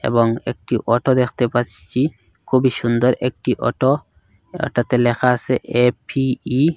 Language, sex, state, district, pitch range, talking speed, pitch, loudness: Bengali, male, Assam, Hailakandi, 120-130 Hz, 125 wpm, 125 Hz, -19 LUFS